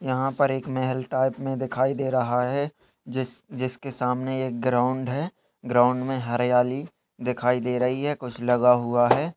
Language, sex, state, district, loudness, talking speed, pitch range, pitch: Hindi, male, Bihar, Darbhanga, -25 LUFS, 175 wpm, 125-135 Hz, 130 Hz